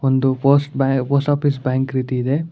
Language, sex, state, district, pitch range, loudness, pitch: Kannada, male, Karnataka, Bangalore, 130-140 Hz, -18 LUFS, 135 Hz